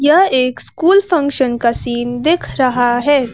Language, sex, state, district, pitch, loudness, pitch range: Hindi, female, Madhya Pradesh, Bhopal, 260 Hz, -14 LUFS, 245-320 Hz